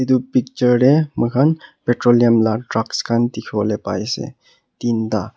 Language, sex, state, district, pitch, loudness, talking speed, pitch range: Nagamese, male, Nagaland, Kohima, 120 Hz, -18 LUFS, 155 wpm, 110-130 Hz